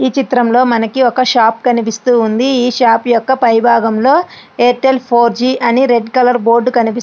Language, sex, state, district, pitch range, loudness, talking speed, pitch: Telugu, female, Andhra Pradesh, Srikakulam, 235-255 Hz, -11 LUFS, 170 wpm, 245 Hz